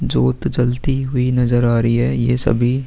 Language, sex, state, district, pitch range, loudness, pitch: Hindi, male, Uttar Pradesh, Jalaun, 120-125 Hz, -17 LUFS, 125 Hz